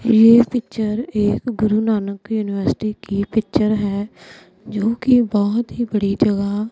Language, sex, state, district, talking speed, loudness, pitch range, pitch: Hindi, female, Punjab, Pathankot, 135 wpm, -18 LUFS, 205-230 Hz, 215 Hz